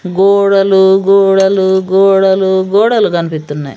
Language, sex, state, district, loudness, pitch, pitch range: Telugu, female, Andhra Pradesh, Sri Satya Sai, -10 LUFS, 195 Hz, 190-195 Hz